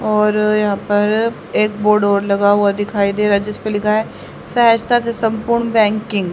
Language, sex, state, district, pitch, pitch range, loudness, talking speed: Hindi, female, Haryana, Rohtak, 210 Hz, 205-220 Hz, -16 LUFS, 190 wpm